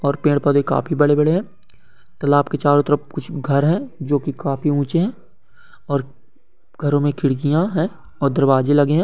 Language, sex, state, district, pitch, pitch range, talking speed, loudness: Hindi, male, West Bengal, Kolkata, 145 Hz, 140-160 Hz, 150 wpm, -19 LUFS